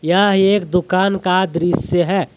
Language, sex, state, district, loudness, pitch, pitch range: Hindi, male, Jharkhand, Deoghar, -16 LUFS, 185 Hz, 175-195 Hz